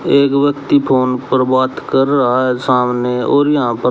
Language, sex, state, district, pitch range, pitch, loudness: Hindi, male, Haryana, Rohtak, 125-140 Hz, 130 Hz, -14 LUFS